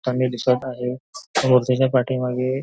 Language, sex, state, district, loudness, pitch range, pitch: Marathi, male, Maharashtra, Nagpur, -21 LUFS, 125-130 Hz, 130 Hz